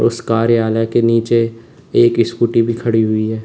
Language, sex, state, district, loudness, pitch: Hindi, male, Uttar Pradesh, Lalitpur, -15 LUFS, 115 Hz